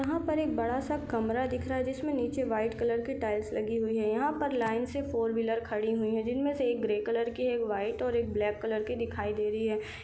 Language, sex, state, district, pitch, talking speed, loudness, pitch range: Hindi, female, Chhattisgarh, Sarguja, 230 Hz, 265 wpm, -31 LUFS, 220-255 Hz